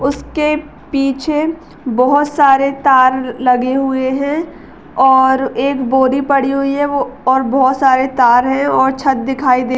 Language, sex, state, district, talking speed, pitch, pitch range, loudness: Hindi, female, Uttar Pradesh, Gorakhpur, 155 wpm, 270 Hz, 260-280 Hz, -13 LUFS